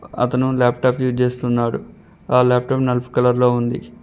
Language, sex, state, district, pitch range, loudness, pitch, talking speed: Telugu, male, Telangana, Mahabubabad, 125-130 Hz, -18 LUFS, 125 Hz, 150 wpm